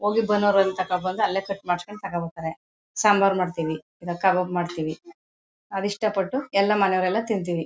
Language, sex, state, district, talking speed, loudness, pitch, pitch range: Kannada, female, Karnataka, Mysore, 140 wpm, -24 LUFS, 195 Hz, 175-205 Hz